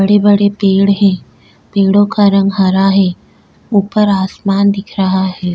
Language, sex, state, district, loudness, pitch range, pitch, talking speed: Hindi, female, Goa, North and South Goa, -12 LUFS, 190-200 Hz, 195 Hz, 140 wpm